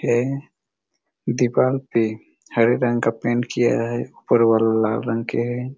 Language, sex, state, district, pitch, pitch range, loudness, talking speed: Hindi, male, Chhattisgarh, Raigarh, 120 Hz, 115-125 Hz, -21 LUFS, 155 wpm